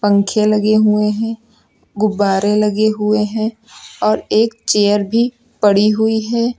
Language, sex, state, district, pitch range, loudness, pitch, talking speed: Hindi, male, Uttar Pradesh, Lucknow, 210-225 Hz, -15 LUFS, 215 Hz, 135 wpm